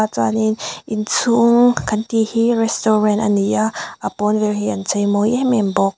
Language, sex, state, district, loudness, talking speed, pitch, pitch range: Mizo, female, Mizoram, Aizawl, -17 LUFS, 190 wpm, 215 Hz, 205-230 Hz